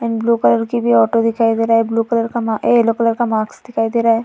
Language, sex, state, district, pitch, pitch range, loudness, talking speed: Hindi, female, Uttar Pradesh, Varanasi, 230 Hz, 220-230 Hz, -16 LUFS, 285 wpm